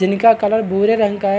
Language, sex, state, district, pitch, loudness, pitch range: Hindi, male, Bihar, Supaul, 210 Hz, -15 LUFS, 195-220 Hz